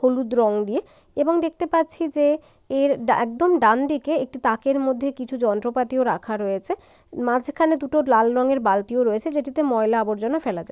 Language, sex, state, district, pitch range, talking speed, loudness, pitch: Bengali, female, West Bengal, Dakshin Dinajpur, 230-300 Hz, 160 wpm, -22 LUFS, 260 Hz